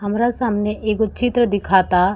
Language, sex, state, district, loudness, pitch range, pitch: Bhojpuri, female, Uttar Pradesh, Gorakhpur, -18 LUFS, 200-235 Hz, 210 Hz